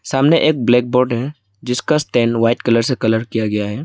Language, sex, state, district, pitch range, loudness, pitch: Hindi, male, Arunachal Pradesh, Lower Dibang Valley, 115-130 Hz, -16 LUFS, 120 Hz